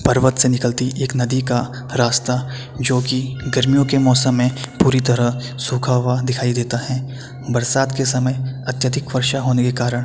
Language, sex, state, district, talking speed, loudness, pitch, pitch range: Hindi, male, Uttar Pradesh, Etah, 165 wpm, -18 LUFS, 130 Hz, 125-130 Hz